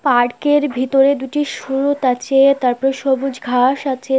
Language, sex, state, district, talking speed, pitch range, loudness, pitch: Bengali, female, West Bengal, North 24 Parganas, 145 wpm, 255-275 Hz, -16 LUFS, 270 Hz